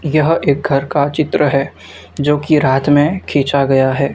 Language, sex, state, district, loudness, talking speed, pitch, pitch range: Hindi, male, Maharashtra, Gondia, -14 LUFS, 190 wpm, 140 Hz, 135-150 Hz